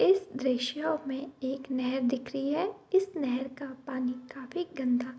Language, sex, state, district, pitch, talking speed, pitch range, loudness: Hindi, female, Bihar, Bhagalpur, 265 Hz, 175 wpm, 255-310 Hz, -32 LUFS